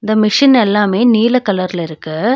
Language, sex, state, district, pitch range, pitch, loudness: Tamil, female, Tamil Nadu, Nilgiris, 185-240 Hz, 215 Hz, -13 LUFS